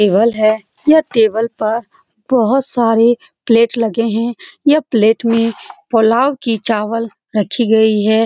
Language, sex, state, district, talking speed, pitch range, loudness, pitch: Hindi, female, Bihar, Saran, 145 wpm, 220-240 Hz, -14 LUFS, 230 Hz